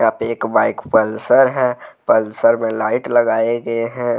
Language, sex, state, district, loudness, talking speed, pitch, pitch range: Hindi, male, Jharkhand, Deoghar, -17 LUFS, 145 wpm, 115 Hz, 110-120 Hz